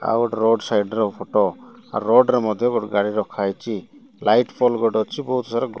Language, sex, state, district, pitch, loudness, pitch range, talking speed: Odia, male, Odisha, Malkangiri, 110 Hz, -20 LUFS, 105-120 Hz, 205 wpm